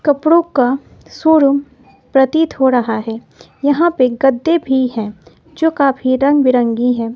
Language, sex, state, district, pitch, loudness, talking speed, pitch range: Hindi, female, Bihar, West Champaran, 265 Hz, -14 LUFS, 140 wpm, 245-290 Hz